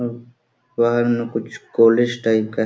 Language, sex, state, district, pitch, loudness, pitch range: Hindi, male, Jharkhand, Sahebganj, 120 Hz, -19 LUFS, 115-120 Hz